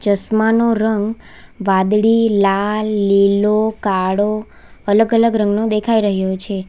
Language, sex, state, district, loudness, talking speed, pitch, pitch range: Gujarati, female, Gujarat, Valsad, -16 LUFS, 105 wpm, 210 Hz, 200-220 Hz